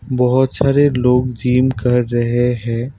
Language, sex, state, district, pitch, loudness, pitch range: Hindi, male, Assam, Kamrup Metropolitan, 125 Hz, -15 LUFS, 120-130 Hz